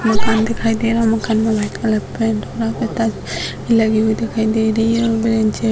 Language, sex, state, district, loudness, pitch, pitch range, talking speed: Hindi, female, Bihar, Purnia, -17 LUFS, 225 Hz, 220-225 Hz, 250 wpm